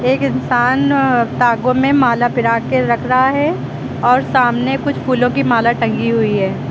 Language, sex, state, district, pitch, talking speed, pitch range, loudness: Hindi, female, Uttar Pradesh, Lucknow, 240 Hz, 170 wpm, 225-255 Hz, -15 LUFS